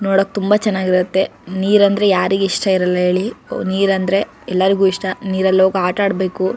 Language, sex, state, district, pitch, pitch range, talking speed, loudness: Kannada, female, Karnataka, Shimoga, 190 Hz, 185-195 Hz, 165 wpm, -16 LUFS